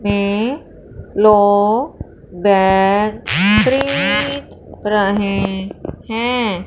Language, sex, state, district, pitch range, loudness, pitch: Hindi, female, Punjab, Fazilka, 195-220 Hz, -15 LUFS, 205 Hz